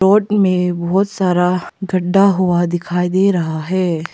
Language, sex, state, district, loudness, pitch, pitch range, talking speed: Hindi, female, Arunachal Pradesh, Papum Pare, -16 LUFS, 180 Hz, 175-195 Hz, 145 wpm